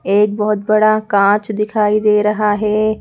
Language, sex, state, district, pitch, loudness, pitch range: Hindi, female, Madhya Pradesh, Bhopal, 210 Hz, -14 LUFS, 210-215 Hz